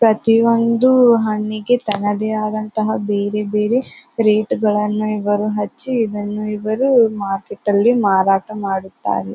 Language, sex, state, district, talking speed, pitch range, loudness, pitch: Kannada, female, Karnataka, Bijapur, 105 wpm, 205-225 Hz, -17 LUFS, 215 Hz